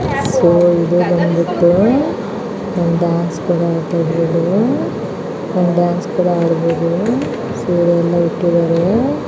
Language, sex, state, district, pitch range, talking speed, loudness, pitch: Kannada, female, Karnataka, Belgaum, 170-180 Hz, 65 wpm, -15 LUFS, 175 Hz